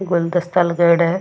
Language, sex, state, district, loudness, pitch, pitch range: Rajasthani, female, Rajasthan, Churu, -16 LUFS, 175 Hz, 170-175 Hz